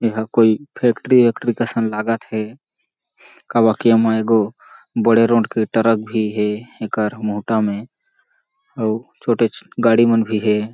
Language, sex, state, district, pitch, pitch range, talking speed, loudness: Chhattisgarhi, male, Chhattisgarh, Jashpur, 115 Hz, 110-120 Hz, 155 wpm, -18 LUFS